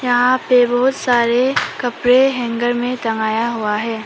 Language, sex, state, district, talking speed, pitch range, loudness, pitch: Hindi, female, Arunachal Pradesh, Papum Pare, 145 wpm, 230-250 Hz, -16 LUFS, 245 Hz